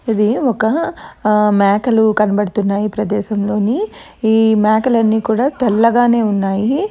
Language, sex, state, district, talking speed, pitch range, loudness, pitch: Telugu, female, Andhra Pradesh, Chittoor, 105 wpm, 210-235 Hz, -15 LUFS, 220 Hz